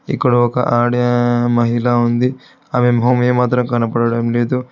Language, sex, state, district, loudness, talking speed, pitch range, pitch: Telugu, male, Telangana, Hyderabad, -15 LUFS, 125 wpm, 120-125 Hz, 120 Hz